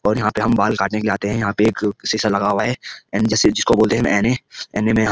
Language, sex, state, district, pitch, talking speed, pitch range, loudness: Hindi, male, Uttarakhand, Uttarkashi, 105 Hz, 270 wpm, 100-110 Hz, -18 LUFS